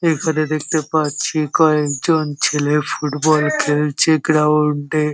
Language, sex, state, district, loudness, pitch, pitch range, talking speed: Bengali, male, West Bengal, Jhargram, -17 LUFS, 150 Hz, 150-155 Hz, 105 wpm